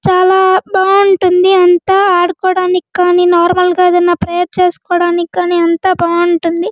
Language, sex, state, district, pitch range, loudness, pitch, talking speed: Telugu, female, Andhra Pradesh, Guntur, 350-370 Hz, -11 LUFS, 360 Hz, 115 wpm